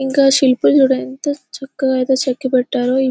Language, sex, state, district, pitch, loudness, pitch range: Telugu, female, Telangana, Nalgonda, 265 Hz, -15 LUFS, 260-270 Hz